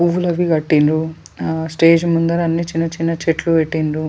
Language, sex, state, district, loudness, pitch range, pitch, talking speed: Telugu, female, Telangana, Nalgonda, -17 LUFS, 160-170 Hz, 165 Hz, 145 wpm